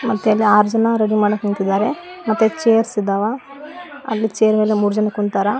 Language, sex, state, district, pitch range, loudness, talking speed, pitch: Kannada, female, Karnataka, Koppal, 210-230 Hz, -17 LUFS, 170 wpm, 215 Hz